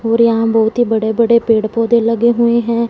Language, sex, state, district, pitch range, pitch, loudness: Hindi, female, Punjab, Fazilka, 225-235 Hz, 230 Hz, -13 LUFS